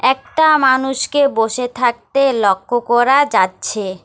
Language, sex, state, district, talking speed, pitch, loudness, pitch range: Bengali, female, West Bengal, Alipurduar, 105 wpm, 245 Hz, -15 LUFS, 225-275 Hz